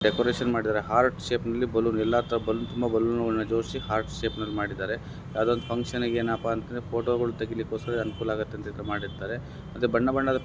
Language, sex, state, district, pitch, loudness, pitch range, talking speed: Kannada, male, Karnataka, Bellary, 115 Hz, -28 LUFS, 110-120 Hz, 195 wpm